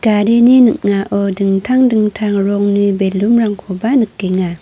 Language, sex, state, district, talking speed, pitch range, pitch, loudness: Garo, female, Meghalaya, North Garo Hills, 90 wpm, 195-225 Hz, 205 Hz, -13 LUFS